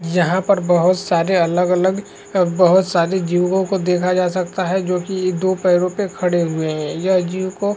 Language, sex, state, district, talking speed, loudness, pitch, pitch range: Hindi, female, Chhattisgarh, Rajnandgaon, 195 wpm, -17 LUFS, 180 Hz, 175-190 Hz